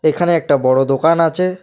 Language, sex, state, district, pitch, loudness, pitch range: Bengali, male, West Bengal, Alipurduar, 160 Hz, -14 LUFS, 135-175 Hz